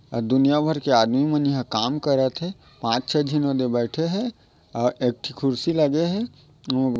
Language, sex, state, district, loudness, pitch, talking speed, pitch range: Chhattisgarhi, male, Chhattisgarh, Raigarh, -23 LUFS, 135 Hz, 180 wpm, 125-150 Hz